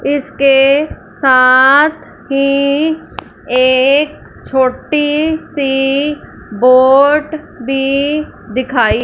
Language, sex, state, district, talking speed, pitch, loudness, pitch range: Hindi, female, Punjab, Fazilka, 60 wpm, 275 Hz, -12 LUFS, 260-295 Hz